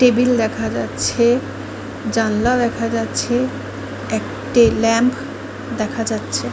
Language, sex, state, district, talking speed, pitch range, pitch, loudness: Bengali, female, West Bengal, Kolkata, 90 wpm, 225-245 Hz, 235 Hz, -19 LUFS